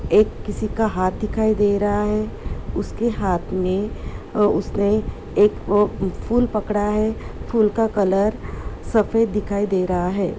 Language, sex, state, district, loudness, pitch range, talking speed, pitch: Hindi, female, Uttar Pradesh, Muzaffarnagar, -21 LUFS, 200-215 Hz, 150 wpm, 210 Hz